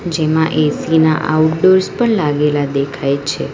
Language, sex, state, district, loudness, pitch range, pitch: Gujarati, female, Gujarat, Valsad, -14 LUFS, 145-165 Hz, 155 Hz